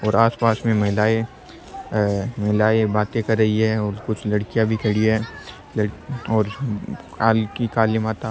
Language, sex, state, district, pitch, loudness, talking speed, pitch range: Rajasthani, male, Rajasthan, Churu, 110 Hz, -21 LUFS, 160 wpm, 105-115 Hz